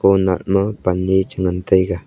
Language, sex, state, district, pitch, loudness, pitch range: Wancho, male, Arunachal Pradesh, Longding, 95 Hz, -18 LUFS, 90-95 Hz